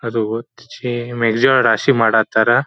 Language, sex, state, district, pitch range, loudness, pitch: Kannada, male, Karnataka, Bijapur, 115-120 Hz, -16 LUFS, 120 Hz